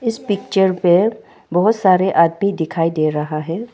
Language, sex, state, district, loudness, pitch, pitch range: Hindi, female, Arunachal Pradesh, Longding, -17 LUFS, 185 Hz, 165-205 Hz